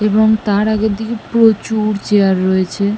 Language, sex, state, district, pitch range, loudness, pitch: Bengali, female, West Bengal, North 24 Parganas, 200-220 Hz, -14 LUFS, 210 Hz